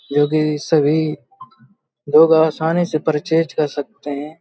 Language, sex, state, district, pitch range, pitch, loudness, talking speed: Hindi, male, Uttar Pradesh, Hamirpur, 150-165 Hz, 155 Hz, -17 LUFS, 150 wpm